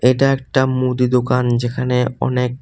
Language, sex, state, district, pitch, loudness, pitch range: Bengali, male, Tripura, West Tripura, 125 Hz, -17 LUFS, 125-130 Hz